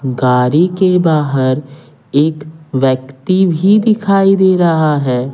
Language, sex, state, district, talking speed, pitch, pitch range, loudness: Hindi, male, Bihar, Patna, 110 wpm, 155 Hz, 135-185 Hz, -13 LUFS